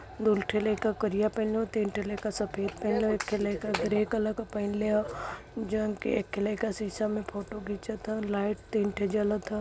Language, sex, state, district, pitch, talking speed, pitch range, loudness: Hindi, female, Uttar Pradesh, Varanasi, 210 Hz, 210 wpm, 205-215 Hz, -31 LUFS